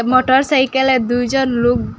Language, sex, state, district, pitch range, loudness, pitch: Bengali, female, Assam, Hailakandi, 245-265 Hz, -15 LUFS, 260 Hz